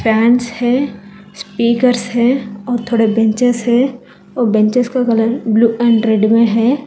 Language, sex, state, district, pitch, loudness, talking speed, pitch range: Hindi, female, Telangana, Hyderabad, 235 Hz, -14 LUFS, 150 wpm, 225-245 Hz